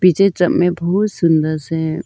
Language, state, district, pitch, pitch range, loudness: Hindi, Arunachal Pradesh, Lower Dibang Valley, 175 Hz, 160-185 Hz, -16 LUFS